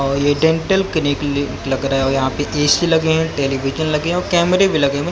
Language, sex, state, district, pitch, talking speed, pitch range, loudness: Hindi, male, Haryana, Jhajjar, 145 Hz, 235 wpm, 140-160 Hz, -17 LUFS